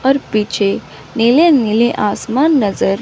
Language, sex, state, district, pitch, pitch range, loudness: Hindi, female, Chandigarh, Chandigarh, 235 Hz, 210-275 Hz, -14 LUFS